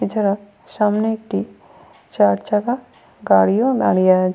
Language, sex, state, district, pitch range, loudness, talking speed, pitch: Bengali, female, Jharkhand, Sahebganj, 185-220 Hz, -18 LUFS, 110 wpm, 205 Hz